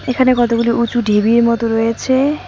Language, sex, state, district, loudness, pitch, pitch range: Bengali, female, West Bengal, Cooch Behar, -14 LUFS, 235 Hz, 230-250 Hz